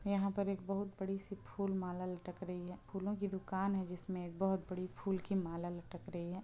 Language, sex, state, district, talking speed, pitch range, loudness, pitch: Hindi, female, Bihar, Muzaffarpur, 215 wpm, 180-195 Hz, -41 LUFS, 190 Hz